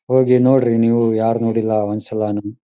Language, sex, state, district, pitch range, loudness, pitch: Kannada, male, Karnataka, Dharwad, 110-125 Hz, -16 LUFS, 115 Hz